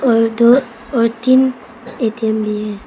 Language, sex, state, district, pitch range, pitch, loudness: Hindi, female, Arunachal Pradesh, Papum Pare, 220-250 Hz, 230 Hz, -15 LUFS